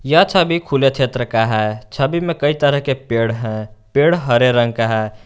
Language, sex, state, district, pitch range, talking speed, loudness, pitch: Hindi, male, Jharkhand, Garhwa, 110-145 Hz, 205 wpm, -16 LUFS, 125 Hz